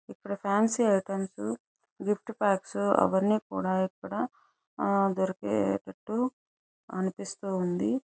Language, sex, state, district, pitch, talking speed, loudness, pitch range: Telugu, male, Andhra Pradesh, Chittoor, 195 Hz, 80 wpm, -29 LUFS, 185-210 Hz